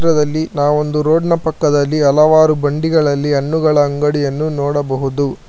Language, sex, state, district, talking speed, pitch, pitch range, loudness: Kannada, male, Karnataka, Bangalore, 110 wpm, 150 Hz, 145-155 Hz, -14 LUFS